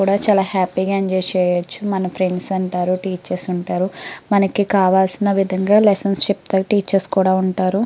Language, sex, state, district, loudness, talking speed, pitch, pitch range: Telugu, female, Andhra Pradesh, Srikakulam, -17 LUFS, 145 wpm, 190 Hz, 185-195 Hz